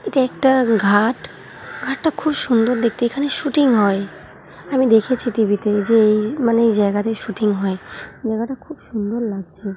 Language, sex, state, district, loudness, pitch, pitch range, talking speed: Bengali, female, West Bengal, Jhargram, -18 LUFS, 230 Hz, 210-260 Hz, 160 wpm